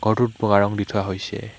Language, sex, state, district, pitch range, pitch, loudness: Assamese, male, Assam, Hailakandi, 100-110 Hz, 105 Hz, -21 LUFS